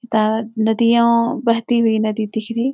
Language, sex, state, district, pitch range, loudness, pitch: Hindi, female, Uttarakhand, Uttarkashi, 220-235 Hz, -17 LUFS, 230 Hz